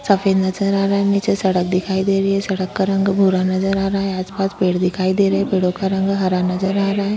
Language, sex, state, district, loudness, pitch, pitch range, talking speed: Hindi, female, Chhattisgarh, Sukma, -18 LUFS, 195 Hz, 185-195 Hz, 275 wpm